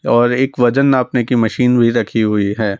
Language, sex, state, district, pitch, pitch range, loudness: Hindi, male, Rajasthan, Jaipur, 120 Hz, 110-125 Hz, -14 LUFS